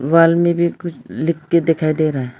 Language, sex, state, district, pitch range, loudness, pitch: Hindi, female, Arunachal Pradesh, Lower Dibang Valley, 155-170 Hz, -16 LUFS, 165 Hz